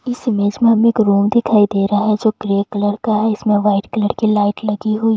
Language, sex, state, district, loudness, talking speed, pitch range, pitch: Hindi, female, Bihar, Katihar, -16 LUFS, 255 wpm, 205-220 Hz, 210 Hz